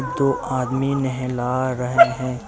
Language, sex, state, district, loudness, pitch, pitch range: Hindi, male, Uttar Pradesh, Lucknow, -20 LUFS, 130 Hz, 125-135 Hz